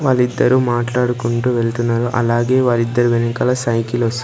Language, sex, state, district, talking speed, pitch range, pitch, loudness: Telugu, male, Andhra Pradesh, Sri Satya Sai, 115 wpm, 115-125 Hz, 120 Hz, -16 LUFS